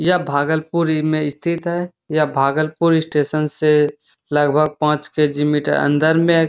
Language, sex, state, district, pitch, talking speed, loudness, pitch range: Hindi, male, Bihar, Bhagalpur, 155 Hz, 155 wpm, -18 LUFS, 150-160 Hz